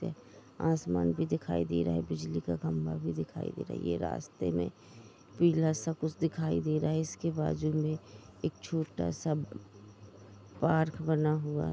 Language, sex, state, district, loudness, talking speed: Hindi, female, Jharkhand, Jamtara, -33 LUFS, 170 wpm